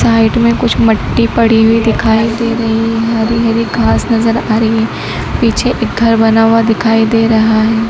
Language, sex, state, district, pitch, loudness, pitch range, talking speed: Hindi, female, Madhya Pradesh, Dhar, 225 Hz, -11 LUFS, 225-230 Hz, 195 wpm